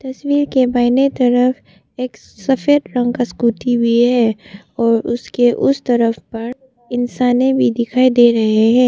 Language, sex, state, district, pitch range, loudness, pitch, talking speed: Hindi, female, Arunachal Pradesh, Papum Pare, 235-255 Hz, -15 LUFS, 245 Hz, 150 wpm